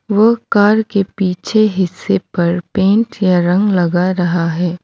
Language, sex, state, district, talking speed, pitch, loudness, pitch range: Hindi, female, Mizoram, Aizawl, 150 wpm, 185 Hz, -14 LUFS, 175-210 Hz